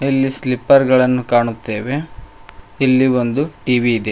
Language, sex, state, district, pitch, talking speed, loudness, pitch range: Kannada, male, Karnataka, Koppal, 125 Hz, 115 wpm, -16 LUFS, 115-135 Hz